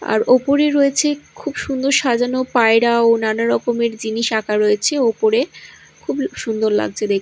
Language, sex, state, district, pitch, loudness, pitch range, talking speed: Bengali, female, Odisha, Malkangiri, 235 Hz, -17 LUFS, 220-275 Hz, 150 wpm